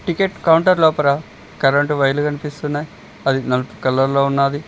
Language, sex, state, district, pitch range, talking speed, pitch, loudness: Telugu, male, Telangana, Mahabubabad, 140-160 Hz, 140 wpm, 145 Hz, -17 LUFS